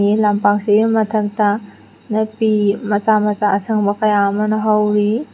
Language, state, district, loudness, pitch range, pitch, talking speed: Manipuri, Manipur, Imphal West, -16 LUFS, 205-215 Hz, 210 Hz, 110 wpm